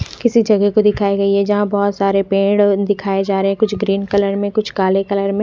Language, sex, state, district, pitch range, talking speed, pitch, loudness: Hindi, female, Odisha, Khordha, 195-205 Hz, 245 wpm, 200 Hz, -16 LUFS